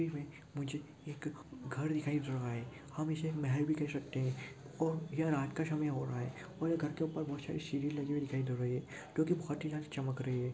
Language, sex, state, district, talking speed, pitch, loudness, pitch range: Hindi, male, Chhattisgarh, Jashpur, 240 wpm, 145 Hz, -38 LUFS, 135-155 Hz